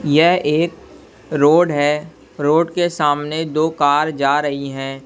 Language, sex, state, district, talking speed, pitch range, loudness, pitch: Hindi, male, Bihar, West Champaran, 140 wpm, 145-160 Hz, -17 LUFS, 150 Hz